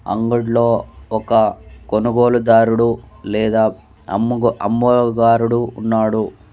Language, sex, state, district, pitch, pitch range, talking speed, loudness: Telugu, male, Andhra Pradesh, Sri Satya Sai, 115 Hz, 110-120 Hz, 65 wpm, -16 LUFS